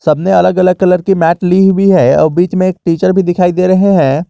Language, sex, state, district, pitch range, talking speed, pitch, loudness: Hindi, male, Jharkhand, Garhwa, 175-190 Hz, 250 wpm, 185 Hz, -10 LUFS